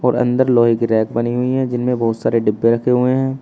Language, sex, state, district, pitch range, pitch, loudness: Hindi, male, Uttar Pradesh, Shamli, 115-125 Hz, 120 Hz, -16 LUFS